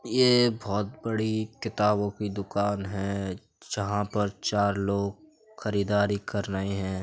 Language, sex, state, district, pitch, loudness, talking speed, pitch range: Hindi, male, Uttar Pradesh, Budaun, 105 Hz, -28 LUFS, 130 wpm, 100-110 Hz